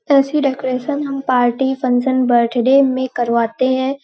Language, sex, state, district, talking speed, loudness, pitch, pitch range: Hindi, female, Uttar Pradesh, Hamirpur, 150 wpm, -16 LUFS, 260 Hz, 245-275 Hz